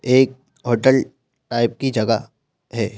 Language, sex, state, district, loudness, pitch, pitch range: Hindi, male, Madhya Pradesh, Bhopal, -19 LUFS, 130 Hz, 115-130 Hz